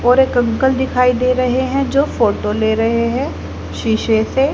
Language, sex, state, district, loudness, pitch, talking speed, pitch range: Hindi, female, Haryana, Jhajjar, -16 LUFS, 250 Hz, 185 wpm, 225-265 Hz